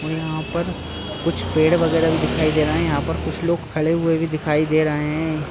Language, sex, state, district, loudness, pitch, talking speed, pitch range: Hindi, male, Bihar, Jahanabad, -20 LUFS, 155 Hz, 240 wpm, 155-165 Hz